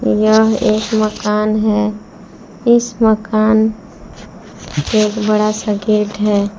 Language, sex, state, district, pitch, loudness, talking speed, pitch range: Hindi, female, Jharkhand, Palamu, 215 Hz, -15 LUFS, 90 wpm, 210-220 Hz